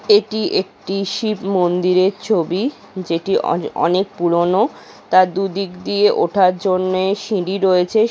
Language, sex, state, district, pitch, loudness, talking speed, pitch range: Bengali, female, West Bengal, North 24 Parganas, 190 Hz, -17 LUFS, 125 wpm, 180-200 Hz